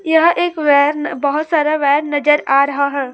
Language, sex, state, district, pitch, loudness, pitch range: Hindi, female, Chhattisgarh, Raipur, 295 Hz, -15 LUFS, 280-310 Hz